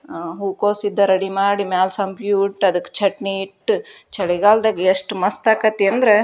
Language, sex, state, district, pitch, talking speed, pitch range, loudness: Kannada, female, Karnataka, Dharwad, 200 Hz, 165 wpm, 190-210 Hz, -18 LUFS